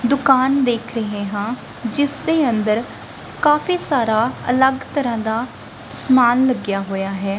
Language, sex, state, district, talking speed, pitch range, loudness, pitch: Punjabi, female, Punjab, Kapurthala, 120 wpm, 220-270 Hz, -18 LUFS, 245 Hz